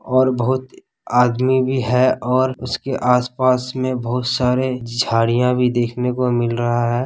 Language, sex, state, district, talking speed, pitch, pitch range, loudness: Hindi, male, Bihar, Kishanganj, 155 wpm, 125 Hz, 120-130 Hz, -18 LUFS